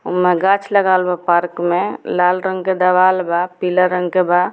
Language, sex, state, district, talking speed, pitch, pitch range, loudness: Bhojpuri, female, Bihar, Muzaffarpur, 210 wpm, 180 Hz, 180-185 Hz, -16 LUFS